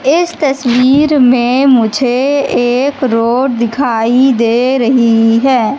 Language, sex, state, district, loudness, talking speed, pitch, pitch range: Hindi, female, Madhya Pradesh, Katni, -11 LUFS, 105 wpm, 250 Hz, 235-270 Hz